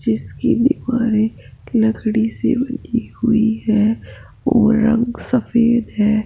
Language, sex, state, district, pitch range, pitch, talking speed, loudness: Hindi, female, Rajasthan, Jaipur, 220-240 Hz, 225 Hz, 105 wpm, -17 LUFS